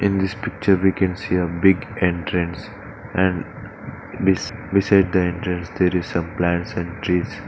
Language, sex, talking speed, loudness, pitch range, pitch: English, male, 150 wpm, -21 LUFS, 90-100 Hz, 90 Hz